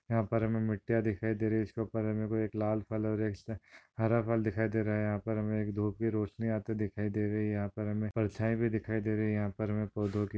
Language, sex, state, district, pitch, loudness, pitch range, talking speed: Hindi, male, Maharashtra, Solapur, 110 Hz, -33 LUFS, 105-110 Hz, 250 wpm